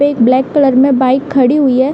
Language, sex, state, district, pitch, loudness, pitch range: Hindi, female, Uttar Pradesh, Hamirpur, 265 Hz, -11 LUFS, 255-280 Hz